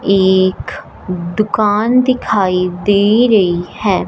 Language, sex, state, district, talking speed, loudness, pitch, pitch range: Hindi, female, Punjab, Fazilka, 90 wpm, -13 LUFS, 200 Hz, 185-215 Hz